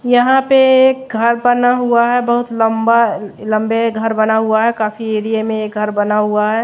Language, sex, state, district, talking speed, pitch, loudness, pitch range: Hindi, female, Odisha, Malkangiri, 200 wpm, 225 Hz, -14 LUFS, 215-245 Hz